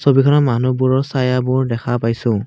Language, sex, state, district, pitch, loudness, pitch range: Assamese, male, Assam, Kamrup Metropolitan, 130 Hz, -16 LUFS, 120-130 Hz